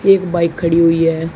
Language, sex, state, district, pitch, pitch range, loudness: Hindi, male, Uttar Pradesh, Shamli, 170 Hz, 165-175 Hz, -14 LUFS